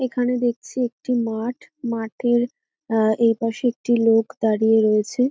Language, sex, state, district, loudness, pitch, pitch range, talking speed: Bengali, female, West Bengal, North 24 Parganas, -21 LUFS, 235 Hz, 225-245 Hz, 125 wpm